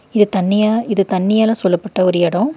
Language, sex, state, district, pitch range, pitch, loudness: Tamil, female, Tamil Nadu, Nilgiris, 185-220 Hz, 205 Hz, -15 LUFS